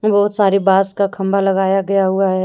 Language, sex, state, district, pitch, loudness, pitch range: Hindi, female, Jharkhand, Deoghar, 195 Hz, -15 LUFS, 190-200 Hz